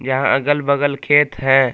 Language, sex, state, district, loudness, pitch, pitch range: Hindi, male, Jharkhand, Palamu, -16 LUFS, 140 Hz, 135-145 Hz